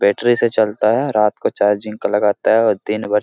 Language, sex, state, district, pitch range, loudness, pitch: Hindi, male, Bihar, Supaul, 105-110 Hz, -16 LUFS, 105 Hz